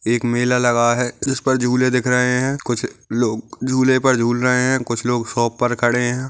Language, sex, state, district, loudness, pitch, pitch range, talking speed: Hindi, male, Maharashtra, Aurangabad, -18 LUFS, 125 Hz, 120-130 Hz, 210 wpm